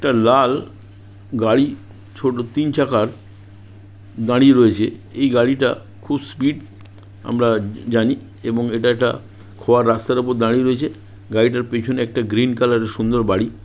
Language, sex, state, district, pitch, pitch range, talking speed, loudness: Bengali, male, West Bengal, Purulia, 115 Hz, 100-125 Hz, 135 wpm, -18 LUFS